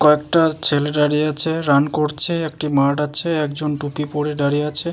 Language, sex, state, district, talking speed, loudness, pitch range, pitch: Bengali, male, West Bengal, Jalpaiguri, 160 wpm, -18 LUFS, 145-155 Hz, 150 Hz